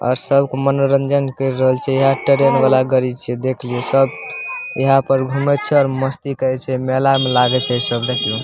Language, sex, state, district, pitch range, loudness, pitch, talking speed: Maithili, male, Bihar, Samastipur, 130-140 Hz, -16 LUFS, 135 Hz, 200 wpm